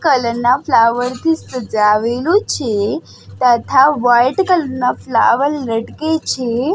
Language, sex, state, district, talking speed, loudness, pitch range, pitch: Gujarati, female, Gujarat, Gandhinagar, 115 wpm, -15 LUFS, 235-295 Hz, 250 Hz